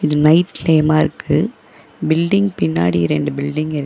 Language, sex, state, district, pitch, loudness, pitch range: Tamil, female, Tamil Nadu, Chennai, 155 Hz, -16 LUFS, 145-160 Hz